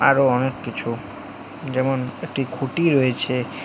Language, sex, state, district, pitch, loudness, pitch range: Bengali, male, West Bengal, Alipurduar, 135 Hz, -22 LUFS, 130-140 Hz